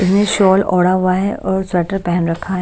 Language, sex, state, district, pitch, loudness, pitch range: Hindi, female, Punjab, Kapurthala, 185 Hz, -15 LUFS, 180-195 Hz